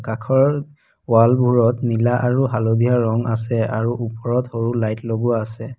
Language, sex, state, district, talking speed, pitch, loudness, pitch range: Assamese, female, Assam, Kamrup Metropolitan, 135 wpm, 115 Hz, -19 LUFS, 115-125 Hz